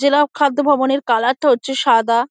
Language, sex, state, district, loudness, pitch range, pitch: Bengali, female, West Bengal, Dakshin Dinajpur, -16 LUFS, 245-285 Hz, 270 Hz